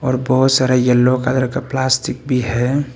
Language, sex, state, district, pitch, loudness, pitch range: Hindi, male, Arunachal Pradesh, Papum Pare, 130 Hz, -16 LUFS, 125-130 Hz